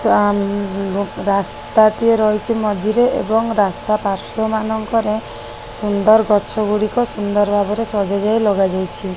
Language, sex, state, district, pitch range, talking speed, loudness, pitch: Odia, female, Odisha, Khordha, 200-220 Hz, 125 wpm, -17 LUFS, 210 Hz